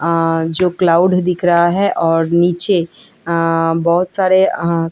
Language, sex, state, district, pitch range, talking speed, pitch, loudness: Hindi, female, Delhi, New Delhi, 165-180 Hz, 135 wpm, 170 Hz, -14 LUFS